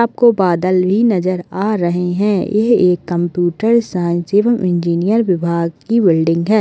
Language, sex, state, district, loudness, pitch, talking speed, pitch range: Hindi, female, Chhattisgarh, Kabirdham, -15 LUFS, 185 Hz, 155 wpm, 175-215 Hz